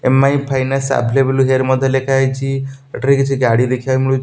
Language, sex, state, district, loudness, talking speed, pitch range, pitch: Odia, male, Odisha, Nuapada, -15 LUFS, 185 wpm, 130-135 Hz, 135 Hz